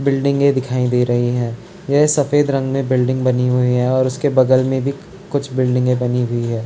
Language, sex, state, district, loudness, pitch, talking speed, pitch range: Hindi, male, Uttarakhand, Tehri Garhwal, -17 LUFS, 130 Hz, 205 wpm, 125-140 Hz